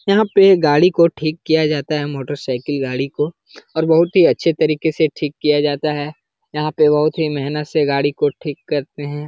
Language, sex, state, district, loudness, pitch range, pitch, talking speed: Hindi, male, Uttar Pradesh, Jalaun, -17 LUFS, 145-160 Hz, 150 Hz, 205 wpm